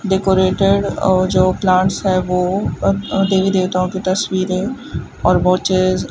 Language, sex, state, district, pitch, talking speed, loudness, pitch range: Hindi, female, Rajasthan, Bikaner, 185 Hz, 140 wpm, -16 LUFS, 185-190 Hz